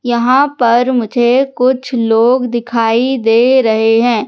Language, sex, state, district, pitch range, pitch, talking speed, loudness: Hindi, female, Madhya Pradesh, Katni, 230-255 Hz, 240 Hz, 125 wpm, -12 LUFS